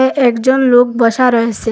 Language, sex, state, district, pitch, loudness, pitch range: Bengali, female, Assam, Hailakandi, 245 Hz, -11 LUFS, 230-260 Hz